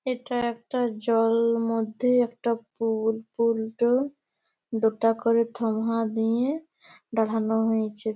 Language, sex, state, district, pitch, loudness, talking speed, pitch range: Bengali, female, West Bengal, Malda, 230 Hz, -26 LUFS, 110 wpm, 225-240 Hz